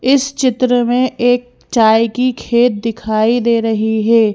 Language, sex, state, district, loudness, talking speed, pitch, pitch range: Hindi, female, Madhya Pradesh, Bhopal, -14 LUFS, 150 wpm, 240 Hz, 225-250 Hz